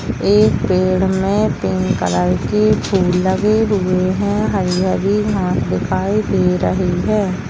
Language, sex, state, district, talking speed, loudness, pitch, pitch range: Hindi, female, Bihar, Darbhanga, 130 wpm, -16 LUFS, 185 Hz, 180-200 Hz